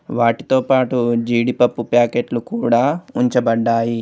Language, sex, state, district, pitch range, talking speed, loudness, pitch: Telugu, male, Telangana, Komaram Bheem, 115-130 Hz, 75 wpm, -17 LUFS, 120 Hz